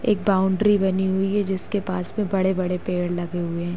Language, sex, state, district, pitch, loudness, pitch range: Hindi, female, Uttar Pradesh, Hamirpur, 190 Hz, -23 LUFS, 180-200 Hz